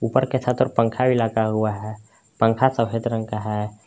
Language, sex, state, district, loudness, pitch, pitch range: Hindi, male, Jharkhand, Palamu, -22 LUFS, 115 Hz, 110-120 Hz